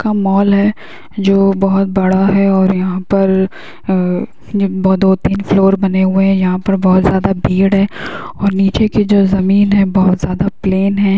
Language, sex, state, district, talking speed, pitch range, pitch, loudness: Hindi, female, Bihar, Muzaffarpur, 185 wpm, 190-195 Hz, 195 Hz, -13 LUFS